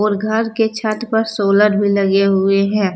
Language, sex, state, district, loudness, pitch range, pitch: Hindi, female, Jharkhand, Deoghar, -15 LUFS, 200-220 Hz, 210 Hz